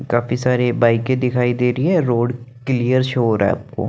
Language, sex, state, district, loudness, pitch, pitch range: Hindi, male, Chandigarh, Chandigarh, -18 LUFS, 125 Hz, 120-130 Hz